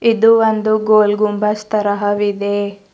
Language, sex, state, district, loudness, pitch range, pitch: Kannada, female, Karnataka, Bidar, -15 LUFS, 205-215 Hz, 210 Hz